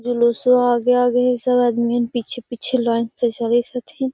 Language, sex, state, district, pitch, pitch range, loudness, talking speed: Magahi, female, Bihar, Gaya, 245 Hz, 235-250 Hz, -18 LUFS, 190 wpm